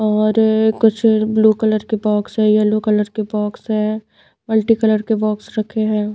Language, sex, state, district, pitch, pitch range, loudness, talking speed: Hindi, female, Bihar, Patna, 215 Hz, 215-220 Hz, -16 LUFS, 175 wpm